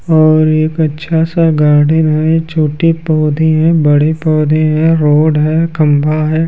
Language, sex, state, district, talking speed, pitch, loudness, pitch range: Hindi, male, Bihar, Kaimur, 150 wpm, 155 Hz, -11 LUFS, 155-160 Hz